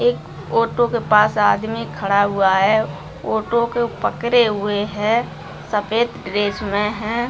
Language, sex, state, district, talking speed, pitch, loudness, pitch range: Bhojpuri, female, Bihar, Saran, 140 wpm, 210 Hz, -19 LUFS, 200-235 Hz